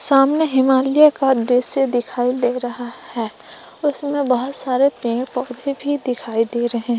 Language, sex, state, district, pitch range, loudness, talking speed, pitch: Hindi, female, Jharkhand, Palamu, 245-275 Hz, -18 LUFS, 145 wpm, 255 Hz